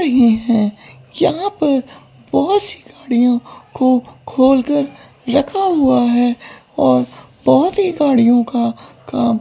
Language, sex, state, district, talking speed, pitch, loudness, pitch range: Hindi, female, Chandigarh, Chandigarh, 115 wpm, 250 Hz, -15 LUFS, 230-290 Hz